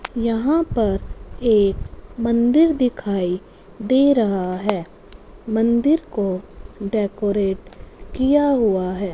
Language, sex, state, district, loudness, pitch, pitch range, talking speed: Hindi, female, Punjab, Fazilka, -20 LUFS, 220 Hz, 195-250 Hz, 90 wpm